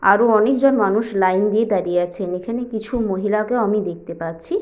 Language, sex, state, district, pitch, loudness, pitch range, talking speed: Bengali, female, West Bengal, Jhargram, 210 Hz, -19 LUFS, 185-230 Hz, 170 wpm